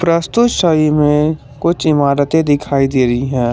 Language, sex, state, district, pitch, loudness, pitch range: Hindi, male, Jharkhand, Garhwa, 150 Hz, -14 LUFS, 140-165 Hz